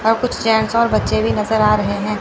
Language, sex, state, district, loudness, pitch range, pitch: Hindi, female, Chandigarh, Chandigarh, -16 LUFS, 205-225 Hz, 210 Hz